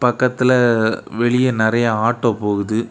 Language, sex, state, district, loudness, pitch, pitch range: Tamil, male, Tamil Nadu, Kanyakumari, -17 LUFS, 115 Hz, 110-125 Hz